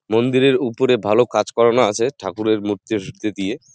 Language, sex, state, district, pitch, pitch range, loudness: Bengali, male, West Bengal, Jalpaiguri, 110 Hz, 105-125 Hz, -18 LUFS